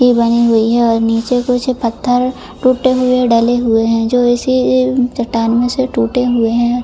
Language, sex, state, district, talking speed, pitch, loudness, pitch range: Hindi, female, Jharkhand, Jamtara, 175 wpm, 245 Hz, -13 LUFS, 230-250 Hz